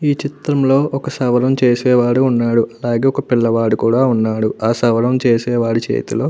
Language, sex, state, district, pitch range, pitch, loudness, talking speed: Telugu, male, Andhra Pradesh, Anantapur, 115-135 Hz, 120 Hz, -15 LUFS, 160 wpm